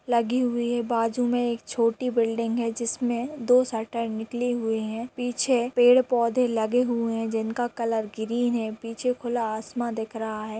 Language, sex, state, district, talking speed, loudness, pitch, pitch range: Hindi, female, Jharkhand, Sahebganj, 175 wpm, -25 LUFS, 235 Hz, 225-245 Hz